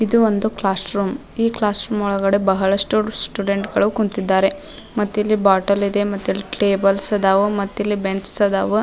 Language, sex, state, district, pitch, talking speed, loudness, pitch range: Kannada, female, Karnataka, Dharwad, 200 Hz, 120 wpm, -18 LUFS, 195-215 Hz